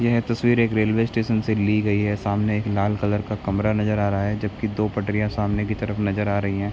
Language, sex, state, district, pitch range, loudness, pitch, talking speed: Hindi, male, Bihar, Begusarai, 105-110 Hz, -22 LUFS, 105 Hz, 260 wpm